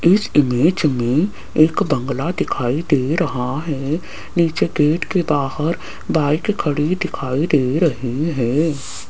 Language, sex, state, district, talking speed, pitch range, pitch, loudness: Hindi, female, Rajasthan, Jaipur, 125 wpm, 135-170 Hz, 150 Hz, -19 LUFS